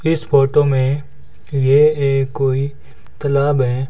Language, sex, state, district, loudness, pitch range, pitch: Hindi, male, Rajasthan, Bikaner, -16 LUFS, 130-145 Hz, 135 Hz